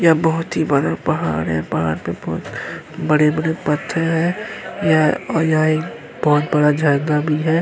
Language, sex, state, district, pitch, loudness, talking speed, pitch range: Hindi, male, Uttar Pradesh, Jyotiba Phule Nagar, 155 Hz, -18 LUFS, 165 wpm, 150-160 Hz